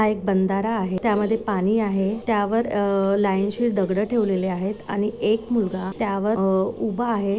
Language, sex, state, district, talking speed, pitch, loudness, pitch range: Marathi, female, Maharashtra, Nagpur, 170 wpm, 205 Hz, -22 LUFS, 195-220 Hz